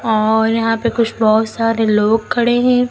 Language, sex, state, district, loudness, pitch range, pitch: Hindi, female, Uttar Pradesh, Lucknow, -15 LUFS, 220-230 Hz, 225 Hz